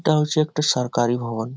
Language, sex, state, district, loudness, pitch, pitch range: Bengali, male, West Bengal, Jhargram, -21 LUFS, 125 Hz, 120-150 Hz